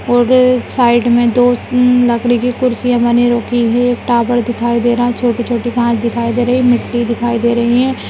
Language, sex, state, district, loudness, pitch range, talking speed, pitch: Hindi, female, Rajasthan, Nagaur, -13 LUFS, 235-245 Hz, 215 wpm, 240 Hz